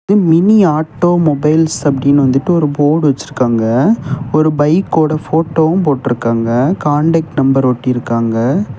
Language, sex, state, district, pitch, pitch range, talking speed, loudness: Tamil, male, Tamil Nadu, Kanyakumari, 145 Hz, 130-160 Hz, 115 wpm, -12 LUFS